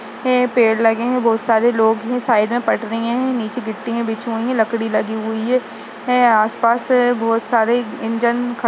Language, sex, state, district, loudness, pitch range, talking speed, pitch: Hindi, female, Uttar Pradesh, Etah, -17 LUFS, 225-245 Hz, 195 wpm, 230 Hz